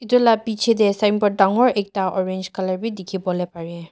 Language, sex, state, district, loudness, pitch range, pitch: Nagamese, female, Nagaland, Dimapur, -20 LUFS, 185-220 Hz, 195 Hz